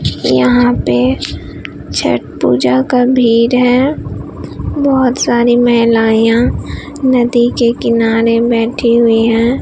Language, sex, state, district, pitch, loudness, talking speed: Hindi, female, Bihar, Katihar, 230 Hz, -11 LUFS, 110 wpm